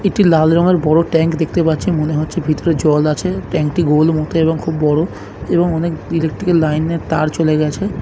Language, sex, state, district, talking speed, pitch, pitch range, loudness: Bengali, male, West Bengal, Malda, 200 wpm, 160 Hz, 155-170 Hz, -15 LUFS